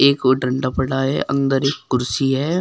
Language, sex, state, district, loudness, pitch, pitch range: Hindi, female, Uttar Pradesh, Shamli, -19 LUFS, 135 Hz, 130-140 Hz